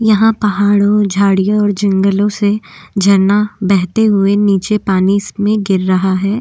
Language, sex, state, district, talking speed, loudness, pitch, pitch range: Hindi, female, Uttarakhand, Tehri Garhwal, 150 wpm, -13 LUFS, 200 Hz, 195-210 Hz